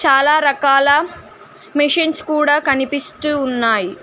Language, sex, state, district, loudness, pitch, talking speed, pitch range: Telugu, female, Telangana, Mahabubabad, -15 LUFS, 290 Hz, 90 wpm, 275-310 Hz